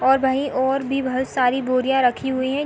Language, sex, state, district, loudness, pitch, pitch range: Hindi, female, Uttar Pradesh, Hamirpur, -20 LUFS, 265 Hz, 260-270 Hz